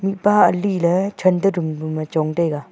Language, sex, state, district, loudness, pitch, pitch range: Wancho, female, Arunachal Pradesh, Longding, -18 LUFS, 175 Hz, 155-195 Hz